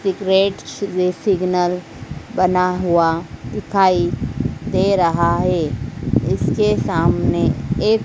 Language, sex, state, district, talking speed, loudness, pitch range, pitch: Hindi, female, Madhya Pradesh, Dhar, 90 wpm, -18 LUFS, 170-190 Hz, 180 Hz